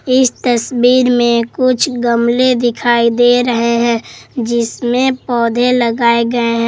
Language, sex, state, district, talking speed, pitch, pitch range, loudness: Hindi, female, Jharkhand, Garhwa, 125 wpm, 240 Hz, 235-250 Hz, -13 LUFS